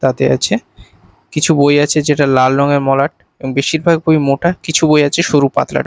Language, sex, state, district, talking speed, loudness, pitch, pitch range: Bengali, male, Odisha, Malkangiri, 185 wpm, -13 LUFS, 145 Hz, 140-155 Hz